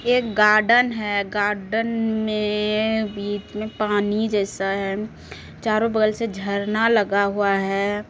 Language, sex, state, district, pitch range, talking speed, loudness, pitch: Maithili, female, Bihar, Supaul, 200-220 Hz, 125 wpm, -21 LUFS, 210 Hz